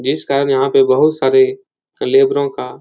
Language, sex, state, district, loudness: Hindi, male, Uttar Pradesh, Etah, -14 LUFS